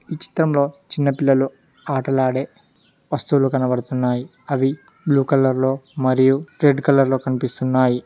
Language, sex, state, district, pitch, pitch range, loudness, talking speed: Telugu, male, Telangana, Mahabubabad, 135 Hz, 130-140 Hz, -19 LUFS, 120 wpm